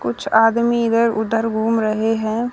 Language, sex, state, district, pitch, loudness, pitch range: Hindi, female, Haryana, Rohtak, 225 Hz, -18 LUFS, 220-230 Hz